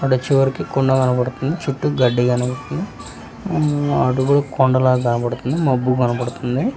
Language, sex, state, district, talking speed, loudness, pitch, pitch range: Telugu, male, Telangana, Hyderabad, 115 wpm, -18 LUFS, 130 Hz, 125-140 Hz